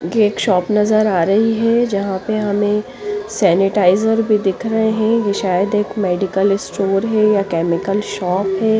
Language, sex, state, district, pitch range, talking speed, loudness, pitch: Hindi, female, Chandigarh, Chandigarh, 195-220 Hz, 165 wpm, -16 LUFS, 205 Hz